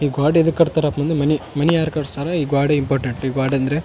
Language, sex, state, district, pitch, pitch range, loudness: Kannada, male, Karnataka, Raichur, 145 Hz, 135-160 Hz, -19 LUFS